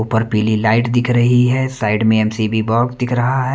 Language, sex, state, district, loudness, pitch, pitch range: Hindi, male, Haryana, Rohtak, -15 LUFS, 115 Hz, 110-125 Hz